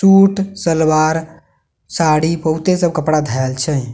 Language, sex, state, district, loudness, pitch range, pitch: Maithili, male, Bihar, Katihar, -15 LUFS, 155-175 Hz, 160 Hz